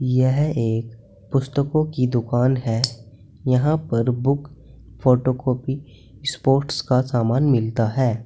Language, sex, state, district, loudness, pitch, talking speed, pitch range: Hindi, male, Uttar Pradesh, Saharanpur, -21 LUFS, 130 Hz, 115 wpm, 115-135 Hz